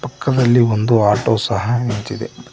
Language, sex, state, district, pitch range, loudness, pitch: Kannada, male, Karnataka, Koppal, 110-120 Hz, -16 LUFS, 120 Hz